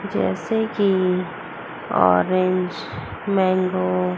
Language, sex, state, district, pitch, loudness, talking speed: Hindi, female, Chandigarh, Chandigarh, 185 Hz, -21 LUFS, 70 wpm